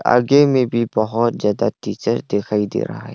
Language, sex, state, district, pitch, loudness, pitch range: Hindi, male, Arunachal Pradesh, Longding, 115 Hz, -18 LUFS, 105-120 Hz